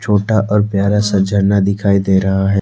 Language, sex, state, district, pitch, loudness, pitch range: Hindi, male, Jharkhand, Deoghar, 100 Hz, -14 LUFS, 100-105 Hz